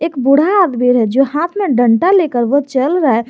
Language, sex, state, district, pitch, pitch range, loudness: Hindi, male, Jharkhand, Garhwa, 275 Hz, 250-330 Hz, -13 LUFS